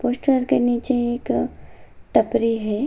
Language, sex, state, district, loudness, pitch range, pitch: Hindi, female, Bihar, Bhagalpur, -21 LUFS, 235-255 Hz, 245 Hz